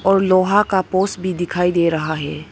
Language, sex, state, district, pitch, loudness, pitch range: Hindi, female, Arunachal Pradesh, Papum Pare, 185 Hz, -18 LUFS, 170-190 Hz